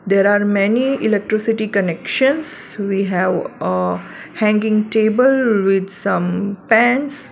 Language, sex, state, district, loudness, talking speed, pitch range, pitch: English, female, Gujarat, Valsad, -17 LUFS, 105 wpm, 195-225 Hz, 210 Hz